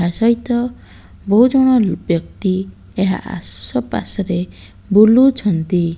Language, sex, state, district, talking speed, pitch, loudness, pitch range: Odia, female, Odisha, Malkangiri, 80 wpm, 200 Hz, -15 LUFS, 180-240 Hz